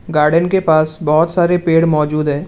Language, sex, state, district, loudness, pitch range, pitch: Hindi, male, Assam, Kamrup Metropolitan, -14 LUFS, 150-170 Hz, 160 Hz